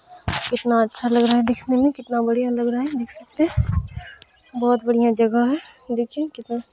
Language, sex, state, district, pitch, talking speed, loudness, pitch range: Hindi, female, Bihar, Jamui, 245 Hz, 205 wpm, -21 LUFS, 235-260 Hz